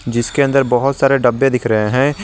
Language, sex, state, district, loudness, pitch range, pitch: Hindi, male, Jharkhand, Garhwa, -14 LUFS, 120-135 Hz, 130 Hz